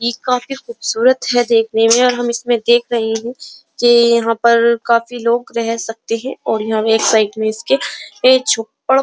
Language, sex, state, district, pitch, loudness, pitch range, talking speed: Hindi, female, Uttar Pradesh, Jyotiba Phule Nagar, 235 Hz, -15 LUFS, 225-245 Hz, 185 wpm